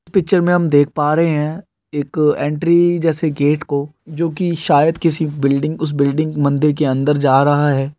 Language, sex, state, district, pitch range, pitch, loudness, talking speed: Hindi, male, Andhra Pradesh, Guntur, 145-165 Hz, 150 Hz, -16 LUFS, 180 wpm